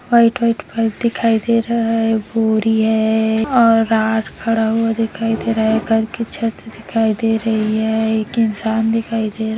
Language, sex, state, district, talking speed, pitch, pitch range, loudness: Hindi, female, Chhattisgarh, Kabirdham, 190 wpm, 225 Hz, 220-230 Hz, -17 LUFS